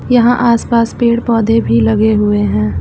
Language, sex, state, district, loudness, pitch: Hindi, female, Uttar Pradesh, Lucknow, -12 LUFS, 225 Hz